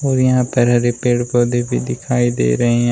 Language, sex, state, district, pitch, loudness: Hindi, male, Uttar Pradesh, Shamli, 120 Hz, -16 LUFS